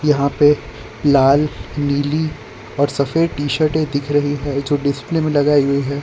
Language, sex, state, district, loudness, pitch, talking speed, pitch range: Hindi, male, Gujarat, Valsad, -17 LUFS, 145 Hz, 160 wpm, 140-150 Hz